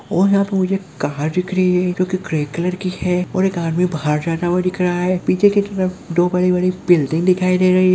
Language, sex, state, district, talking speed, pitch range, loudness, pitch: Hindi, male, Chhattisgarh, Kabirdham, 270 wpm, 175-185 Hz, -18 LUFS, 180 Hz